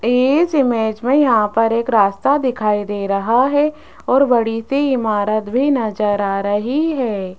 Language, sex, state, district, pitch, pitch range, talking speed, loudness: Hindi, female, Rajasthan, Jaipur, 230 Hz, 210-270 Hz, 160 wpm, -16 LUFS